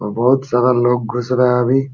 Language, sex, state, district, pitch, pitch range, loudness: Hindi, male, Uttar Pradesh, Jalaun, 125 Hz, 120-125 Hz, -15 LUFS